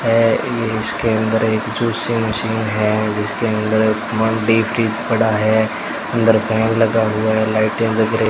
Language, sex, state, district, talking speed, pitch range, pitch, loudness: Hindi, male, Rajasthan, Bikaner, 145 wpm, 110-115 Hz, 110 Hz, -17 LUFS